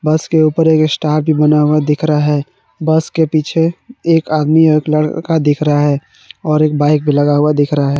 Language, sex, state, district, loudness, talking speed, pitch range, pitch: Hindi, male, Jharkhand, Garhwa, -13 LUFS, 225 wpm, 150-160 Hz, 155 Hz